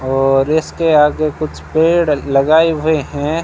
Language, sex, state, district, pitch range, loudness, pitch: Hindi, male, Rajasthan, Bikaner, 145-160 Hz, -14 LUFS, 155 Hz